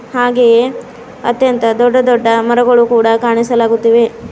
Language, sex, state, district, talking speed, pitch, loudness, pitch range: Kannada, female, Karnataka, Bidar, 95 wpm, 240 Hz, -11 LUFS, 230-245 Hz